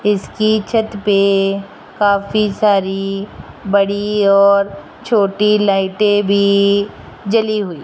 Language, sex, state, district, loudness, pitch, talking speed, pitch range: Hindi, female, Rajasthan, Jaipur, -15 LUFS, 200 Hz, 100 wpm, 200-210 Hz